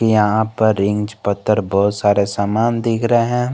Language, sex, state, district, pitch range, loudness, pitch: Hindi, male, Jharkhand, Garhwa, 100-115 Hz, -17 LUFS, 110 Hz